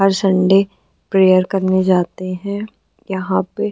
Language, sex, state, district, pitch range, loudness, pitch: Hindi, female, Uttar Pradesh, Gorakhpur, 185-195 Hz, -16 LUFS, 190 Hz